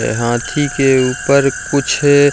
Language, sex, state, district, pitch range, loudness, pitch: Hindi, male, Bihar, Jamui, 125-145 Hz, -14 LUFS, 140 Hz